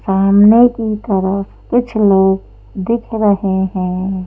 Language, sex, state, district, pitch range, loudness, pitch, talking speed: Hindi, female, Madhya Pradesh, Bhopal, 190-220 Hz, -14 LUFS, 200 Hz, 110 wpm